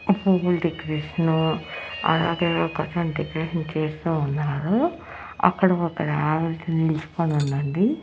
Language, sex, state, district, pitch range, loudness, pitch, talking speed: Telugu, female, Andhra Pradesh, Annamaya, 155-170 Hz, -24 LUFS, 160 Hz, 80 wpm